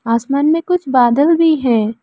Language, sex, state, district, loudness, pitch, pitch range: Hindi, female, Arunachal Pradesh, Lower Dibang Valley, -14 LUFS, 275 Hz, 235-320 Hz